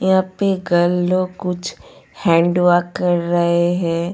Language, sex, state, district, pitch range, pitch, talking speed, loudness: Hindi, female, Goa, North and South Goa, 175-185 Hz, 175 Hz, 145 wpm, -17 LUFS